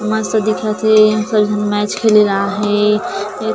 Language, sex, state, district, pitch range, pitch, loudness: Chhattisgarhi, female, Chhattisgarh, Jashpur, 210-215 Hz, 215 Hz, -14 LUFS